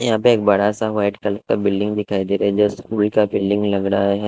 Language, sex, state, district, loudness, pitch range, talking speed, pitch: Hindi, male, Delhi, New Delhi, -18 LUFS, 100-105 Hz, 265 wpm, 105 Hz